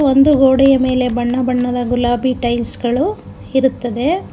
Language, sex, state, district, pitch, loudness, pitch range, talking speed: Kannada, female, Karnataka, Bangalore, 255 Hz, -15 LUFS, 245-270 Hz, 125 wpm